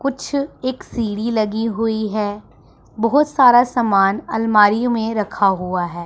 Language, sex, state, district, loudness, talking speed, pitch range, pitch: Hindi, female, Punjab, Pathankot, -18 LUFS, 140 wpm, 210-245 Hz, 220 Hz